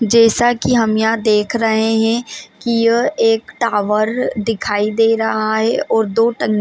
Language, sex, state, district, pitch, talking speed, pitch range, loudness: Hindi, female, Maharashtra, Chandrapur, 225 Hz, 170 wpm, 215-230 Hz, -15 LUFS